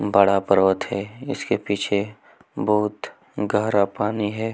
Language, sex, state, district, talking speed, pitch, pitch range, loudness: Hindi, male, Chhattisgarh, Kabirdham, 120 wpm, 105 Hz, 100-105 Hz, -22 LUFS